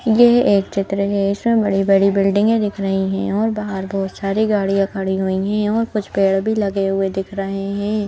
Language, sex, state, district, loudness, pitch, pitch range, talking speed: Hindi, female, Madhya Pradesh, Bhopal, -18 LUFS, 195 Hz, 195-210 Hz, 210 wpm